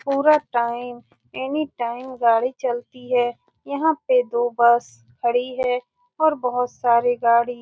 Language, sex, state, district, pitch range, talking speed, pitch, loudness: Hindi, female, Bihar, Saran, 240-280 Hz, 135 wpm, 245 Hz, -21 LUFS